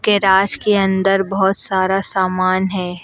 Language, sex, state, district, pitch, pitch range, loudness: Hindi, female, Uttar Pradesh, Lucknow, 190 Hz, 185-195 Hz, -16 LUFS